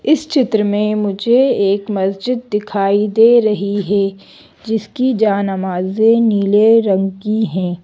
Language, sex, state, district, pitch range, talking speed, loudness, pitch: Hindi, female, Madhya Pradesh, Bhopal, 195-225 Hz, 120 wpm, -15 LUFS, 210 Hz